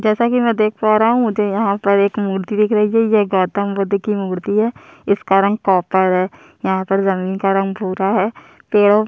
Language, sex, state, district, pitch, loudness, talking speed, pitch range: Hindi, male, Chhattisgarh, Sukma, 200 Hz, -17 LUFS, 220 wpm, 195-215 Hz